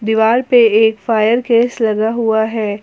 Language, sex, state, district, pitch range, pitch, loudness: Hindi, female, Jharkhand, Ranchi, 220-235 Hz, 220 Hz, -13 LUFS